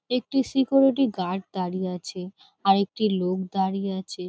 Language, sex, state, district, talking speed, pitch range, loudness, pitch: Bengali, female, West Bengal, Kolkata, 125 wpm, 185-245 Hz, -25 LUFS, 190 Hz